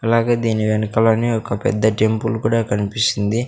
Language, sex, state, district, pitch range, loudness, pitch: Telugu, male, Andhra Pradesh, Sri Satya Sai, 110-115 Hz, -18 LUFS, 110 Hz